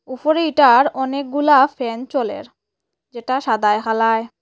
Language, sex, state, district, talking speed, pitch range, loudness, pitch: Bengali, female, Assam, Hailakandi, 110 wpm, 225-285 Hz, -17 LUFS, 255 Hz